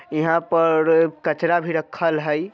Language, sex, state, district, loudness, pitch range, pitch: Bajjika, male, Bihar, Vaishali, -20 LUFS, 155-170 Hz, 165 Hz